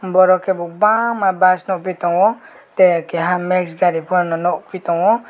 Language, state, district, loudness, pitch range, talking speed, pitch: Kokborok, Tripura, West Tripura, -16 LUFS, 175-190 Hz, 160 wpm, 185 Hz